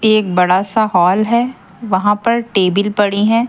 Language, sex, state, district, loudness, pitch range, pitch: Hindi, female, Haryana, Jhajjar, -14 LUFS, 190-230 Hz, 205 Hz